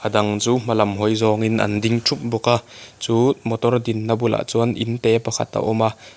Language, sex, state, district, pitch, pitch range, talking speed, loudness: Mizo, male, Mizoram, Aizawl, 115 Hz, 110-120 Hz, 225 wpm, -20 LUFS